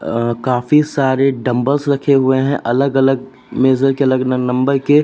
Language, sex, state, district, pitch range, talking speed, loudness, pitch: Hindi, male, Uttar Pradesh, Jalaun, 130-140 Hz, 180 wpm, -15 LUFS, 135 Hz